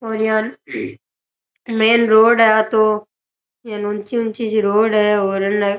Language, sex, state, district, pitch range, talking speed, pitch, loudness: Rajasthani, male, Rajasthan, Nagaur, 210-225 Hz, 155 wpm, 220 Hz, -16 LUFS